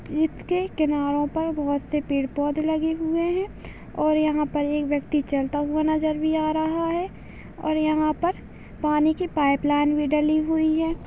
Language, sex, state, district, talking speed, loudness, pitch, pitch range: Hindi, female, Chhattisgarh, Balrampur, 180 wpm, -24 LUFS, 310 Hz, 295-320 Hz